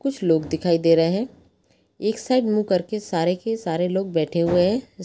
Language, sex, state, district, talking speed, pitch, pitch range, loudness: Hindi, female, Chhattisgarh, Balrampur, 200 wpm, 185 Hz, 165-215 Hz, -22 LUFS